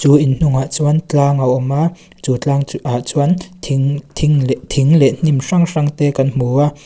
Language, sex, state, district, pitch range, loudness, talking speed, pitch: Mizo, female, Mizoram, Aizawl, 135-155 Hz, -15 LUFS, 220 wpm, 145 Hz